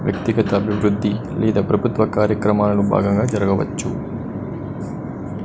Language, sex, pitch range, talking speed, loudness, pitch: Telugu, male, 100-105 Hz, 75 wpm, -20 LUFS, 105 Hz